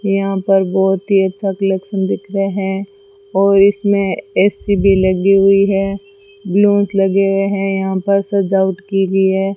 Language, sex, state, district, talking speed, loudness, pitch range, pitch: Hindi, female, Rajasthan, Bikaner, 165 wpm, -15 LUFS, 195-200 Hz, 195 Hz